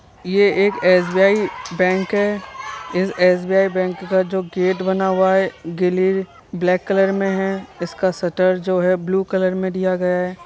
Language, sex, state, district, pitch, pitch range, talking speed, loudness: Hindi, male, Bihar, Vaishali, 185 Hz, 180-195 Hz, 165 wpm, -18 LUFS